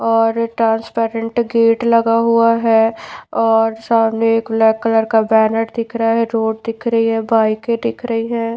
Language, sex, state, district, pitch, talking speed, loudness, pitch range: Hindi, female, Bihar, Patna, 225 Hz, 170 wpm, -15 LUFS, 225-230 Hz